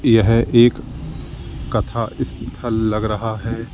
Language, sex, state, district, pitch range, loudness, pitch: Hindi, male, Uttar Pradesh, Lalitpur, 110-115 Hz, -18 LUFS, 115 Hz